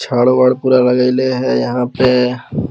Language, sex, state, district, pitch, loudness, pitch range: Magahi, male, Bihar, Lakhisarai, 125 Hz, -13 LUFS, 125-130 Hz